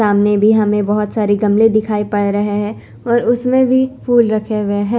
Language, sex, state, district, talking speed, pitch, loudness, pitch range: Hindi, female, Chandigarh, Chandigarh, 215 wpm, 210 Hz, -14 LUFS, 205-235 Hz